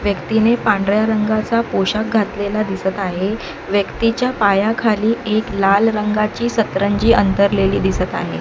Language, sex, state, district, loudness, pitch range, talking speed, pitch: Marathi, female, Maharashtra, Mumbai Suburban, -17 LUFS, 200-220 Hz, 115 wpm, 210 Hz